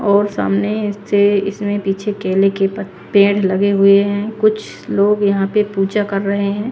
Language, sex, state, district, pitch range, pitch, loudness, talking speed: Hindi, female, Haryana, Charkhi Dadri, 195-205 Hz, 200 Hz, -16 LUFS, 170 wpm